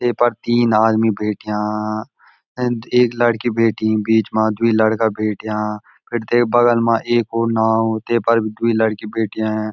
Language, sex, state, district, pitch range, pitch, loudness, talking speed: Garhwali, male, Uttarakhand, Uttarkashi, 110-120 Hz, 110 Hz, -18 LUFS, 165 wpm